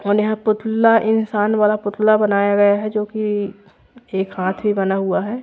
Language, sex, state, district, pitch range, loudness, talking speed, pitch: Hindi, female, Odisha, Khordha, 200-215 Hz, -18 LUFS, 155 wpm, 210 Hz